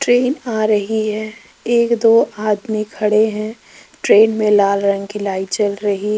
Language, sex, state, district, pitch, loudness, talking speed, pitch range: Hindi, female, Rajasthan, Jaipur, 215 Hz, -16 LUFS, 175 wpm, 205-225 Hz